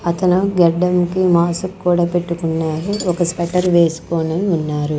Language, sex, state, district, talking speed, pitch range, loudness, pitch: Telugu, female, Andhra Pradesh, Sri Satya Sai, 110 wpm, 165-180 Hz, -17 LUFS, 175 Hz